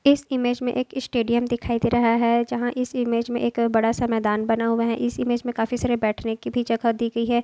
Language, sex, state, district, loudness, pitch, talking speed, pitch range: Hindi, female, Maharashtra, Dhule, -23 LUFS, 235 Hz, 250 wpm, 230-245 Hz